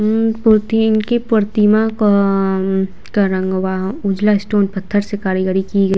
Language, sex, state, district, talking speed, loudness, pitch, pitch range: Hindi, female, Bihar, Vaishali, 170 wpm, -16 LUFS, 205 Hz, 190-215 Hz